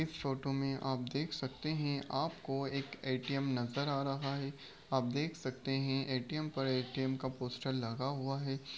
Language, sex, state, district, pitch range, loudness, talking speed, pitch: Hindi, male, Bihar, Begusarai, 130-140 Hz, -38 LUFS, 180 wpm, 135 Hz